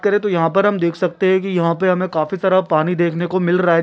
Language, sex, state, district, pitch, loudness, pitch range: Hindi, male, Uttar Pradesh, Etah, 180 Hz, -17 LUFS, 170-190 Hz